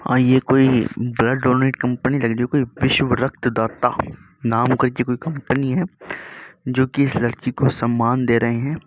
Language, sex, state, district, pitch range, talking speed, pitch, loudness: Hindi, male, Uttar Pradesh, Muzaffarnagar, 120-135 Hz, 185 wpm, 125 Hz, -19 LUFS